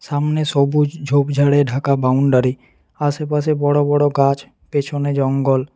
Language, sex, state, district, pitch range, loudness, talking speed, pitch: Bengali, male, West Bengal, Alipurduar, 135-145 Hz, -17 LUFS, 115 wpm, 145 Hz